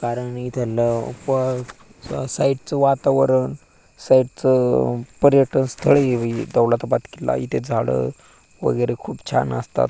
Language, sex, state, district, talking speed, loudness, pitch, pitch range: Marathi, male, Maharashtra, Aurangabad, 115 wpm, -20 LUFS, 125 Hz, 115-130 Hz